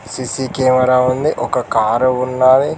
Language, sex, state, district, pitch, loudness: Telugu, male, Telangana, Mahabubabad, 130 Hz, -15 LUFS